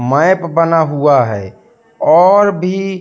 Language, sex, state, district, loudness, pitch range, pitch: Hindi, male, Madhya Pradesh, Katni, -12 LUFS, 145-195 Hz, 180 Hz